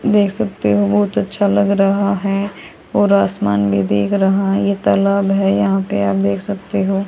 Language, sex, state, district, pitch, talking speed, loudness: Hindi, female, Haryana, Charkhi Dadri, 195 Hz, 195 wpm, -16 LUFS